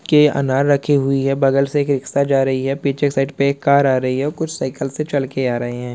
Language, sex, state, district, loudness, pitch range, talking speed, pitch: Hindi, male, Uttar Pradesh, Hamirpur, -17 LUFS, 135-140 Hz, 290 wpm, 140 Hz